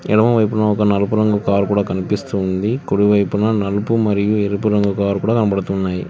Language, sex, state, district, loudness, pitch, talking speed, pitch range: Telugu, male, Telangana, Hyderabad, -17 LUFS, 105 Hz, 155 wpm, 100-105 Hz